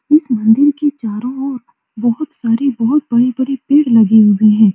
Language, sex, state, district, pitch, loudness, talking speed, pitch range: Hindi, female, Bihar, Supaul, 245 Hz, -13 LUFS, 165 wpm, 225-285 Hz